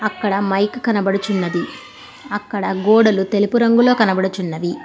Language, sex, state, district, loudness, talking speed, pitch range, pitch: Telugu, female, Telangana, Hyderabad, -17 LUFS, 100 wpm, 190-220 Hz, 205 Hz